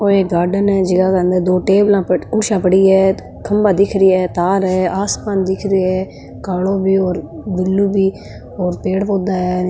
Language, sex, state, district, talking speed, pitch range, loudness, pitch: Marwari, female, Rajasthan, Nagaur, 190 wpm, 185-195 Hz, -15 LUFS, 190 Hz